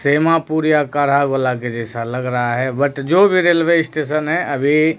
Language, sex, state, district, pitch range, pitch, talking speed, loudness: Hindi, male, Bihar, Katihar, 130-155 Hz, 145 Hz, 130 wpm, -16 LUFS